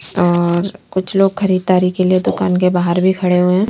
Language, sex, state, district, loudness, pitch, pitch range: Hindi, female, Bihar, Katihar, -15 LUFS, 185 Hz, 180-190 Hz